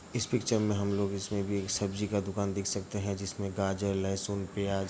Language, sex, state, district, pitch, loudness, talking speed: Hindi, male, Uttar Pradesh, Hamirpur, 100 Hz, -32 LUFS, 235 wpm